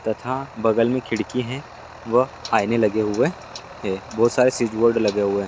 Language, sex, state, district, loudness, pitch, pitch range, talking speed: Hindi, male, Bihar, Lakhisarai, -21 LUFS, 115 Hz, 110-125 Hz, 185 wpm